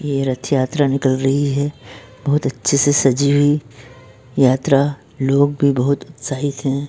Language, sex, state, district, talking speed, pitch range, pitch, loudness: Hindi, male, Uttarakhand, Tehri Garhwal, 130 wpm, 130-145 Hz, 140 Hz, -17 LUFS